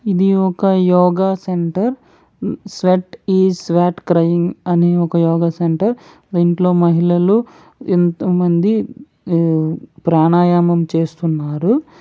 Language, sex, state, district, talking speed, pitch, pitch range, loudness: Telugu, male, Andhra Pradesh, Srikakulam, 80 wpm, 180 Hz, 170-190 Hz, -15 LUFS